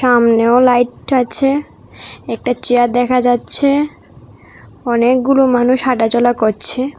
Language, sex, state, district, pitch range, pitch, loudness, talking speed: Bengali, female, Tripura, South Tripura, 240-260 Hz, 245 Hz, -13 LUFS, 105 wpm